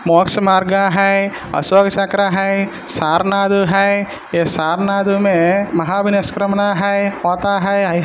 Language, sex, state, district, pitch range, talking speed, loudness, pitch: Hindi, male, Maharashtra, Solapur, 185-200 Hz, 110 wpm, -15 LUFS, 195 Hz